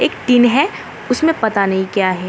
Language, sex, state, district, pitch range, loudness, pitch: Hindi, female, Uttarakhand, Uttarkashi, 190-250 Hz, -15 LUFS, 220 Hz